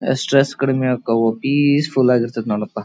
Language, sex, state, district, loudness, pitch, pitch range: Kannada, male, Karnataka, Dharwad, -17 LUFS, 130 Hz, 115-135 Hz